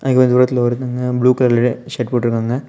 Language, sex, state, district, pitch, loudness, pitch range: Tamil, male, Tamil Nadu, Kanyakumari, 125 Hz, -16 LUFS, 120-125 Hz